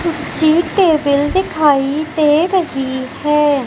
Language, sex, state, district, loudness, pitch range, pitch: Hindi, female, Madhya Pradesh, Umaria, -14 LUFS, 285-330 Hz, 305 Hz